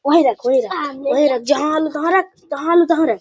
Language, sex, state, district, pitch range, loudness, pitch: Hindi, male, Bihar, Gaya, 290-345 Hz, -17 LUFS, 310 Hz